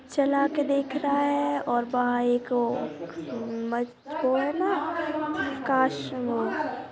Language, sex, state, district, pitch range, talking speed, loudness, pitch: Hindi, female, Uttar Pradesh, Jalaun, 245-290 Hz, 115 wpm, -27 LUFS, 275 Hz